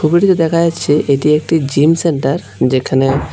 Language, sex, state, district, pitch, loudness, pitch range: Bengali, male, Tripura, West Tripura, 150 Hz, -13 LUFS, 140-165 Hz